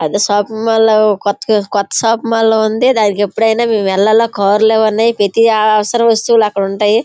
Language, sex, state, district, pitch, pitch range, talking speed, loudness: Telugu, female, Andhra Pradesh, Srikakulam, 215 Hz, 205-225 Hz, 185 wpm, -12 LUFS